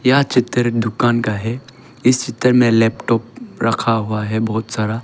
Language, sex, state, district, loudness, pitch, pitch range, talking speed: Hindi, male, Arunachal Pradesh, Longding, -17 LUFS, 115 Hz, 110-125 Hz, 180 wpm